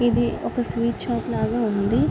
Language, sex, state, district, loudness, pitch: Telugu, female, Andhra Pradesh, Srikakulam, -23 LUFS, 225 Hz